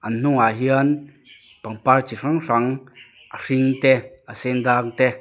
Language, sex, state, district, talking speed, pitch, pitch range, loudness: Mizo, male, Mizoram, Aizawl, 175 wpm, 130 Hz, 120-135 Hz, -20 LUFS